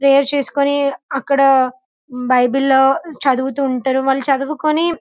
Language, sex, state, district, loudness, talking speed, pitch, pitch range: Telugu, female, Telangana, Karimnagar, -16 LUFS, 120 wpm, 275 Hz, 265-285 Hz